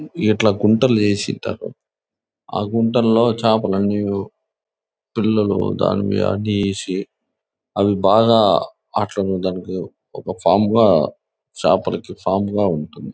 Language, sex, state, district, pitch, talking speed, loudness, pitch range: Telugu, male, Andhra Pradesh, Anantapur, 105 Hz, 90 wpm, -18 LUFS, 100-110 Hz